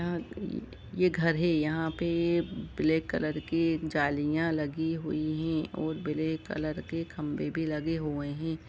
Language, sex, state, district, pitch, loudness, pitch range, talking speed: Hindi, male, Jharkhand, Jamtara, 160 Hz, -31 LUFS, 155-165 Hz, 150 wpm